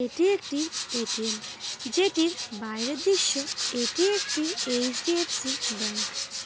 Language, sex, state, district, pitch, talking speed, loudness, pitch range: Bengali, male, West Bengal, Jhargram, 275 Hz, 100 wpm, -27 LUFS, 240-345 Hz